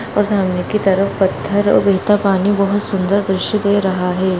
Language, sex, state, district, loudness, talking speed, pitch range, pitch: Hindi, female, Uttarakhand, Uttarkashi, -16 LUFS, 190 wpm, 190-205 Hz, 195 Hz